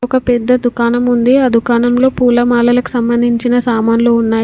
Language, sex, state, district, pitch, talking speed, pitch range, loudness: Telugu, female, Telangana, Komaram Bheem, 240 Hz, 150 wpm, 235-245 Hz, -12 LUFS